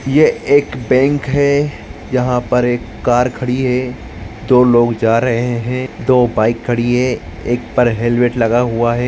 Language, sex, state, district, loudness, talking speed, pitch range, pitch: Hindi, male, Maharashtra, Solapur, -15 LUFS, 165 wpm, 115-125 Hz, 120 Hz